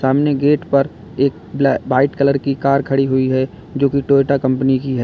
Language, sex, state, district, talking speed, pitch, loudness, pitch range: Hindi, male, Uttar Pradesh, Lalitpur, 200 wpm, 140 Hz, -16 LUFS, 130-140 Hz